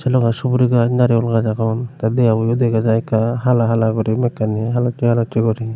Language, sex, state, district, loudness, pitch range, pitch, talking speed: Chakma, male, Tripura, Unakoti, -17 LUFS, 110-120 Hz, 115 Hz, 190 wpm